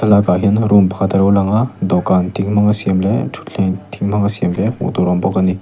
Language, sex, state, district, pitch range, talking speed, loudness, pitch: Mizo, male, Mizoram, Aizawl, 95-105 Hz, 245 wpm, -15 LUFS, 100 Hz